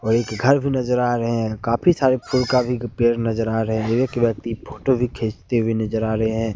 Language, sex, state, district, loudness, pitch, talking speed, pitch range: Hindi, male, Jharkhand, Ranchi, -21 LUFS, 115 Hz, 320 wpm, 110-125 Hz